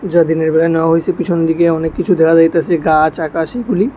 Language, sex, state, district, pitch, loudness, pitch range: Bengali, male, Tripura, West Tripura, 165 Hz, -13 LUFS, 160-175 Hz